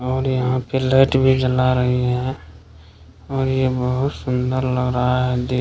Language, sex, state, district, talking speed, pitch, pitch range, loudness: Hindi, male, Bihar, Kishanganj, 180 wpm, 125 Hz, 125-130 Hz, -19 LUFS